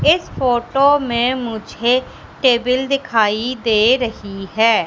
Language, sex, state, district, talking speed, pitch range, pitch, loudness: Hindi, female, Madhya Pradesh, Katni, 110 wpm, 225-260 Hz, 240 Hz, -17 LUFS